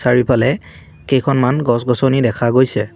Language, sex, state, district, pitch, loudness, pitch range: Assamese, male, Assam, Kamrup Metropolitan, 125 Hz, -15 LUFS, 115-135 Hz